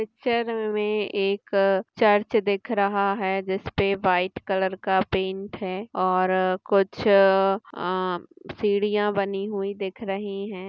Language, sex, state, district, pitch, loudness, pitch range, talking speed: Hindi, female, Chhattisgarh, Jashpur, 195 Hz, -24 LUFS, 190-205 Hz, 130 wpm